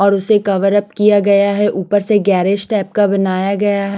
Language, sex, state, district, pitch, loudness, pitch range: Hindi, female, Chandigarh, Chandigarh, 200 Hz, -14 LUFS, 195-205 Hz